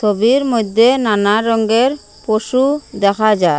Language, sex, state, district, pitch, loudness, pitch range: Bengali, female, Assam, Hailakandi, 225 Hz, -14 LUFS, 210-255 Hz